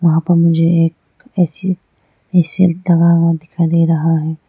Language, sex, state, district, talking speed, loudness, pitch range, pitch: Hindi, female, Arunachal Pradesh, Lower Dibang Valley, 160 wpm, -14 LUFS, 165-175 Hz, 170 Hz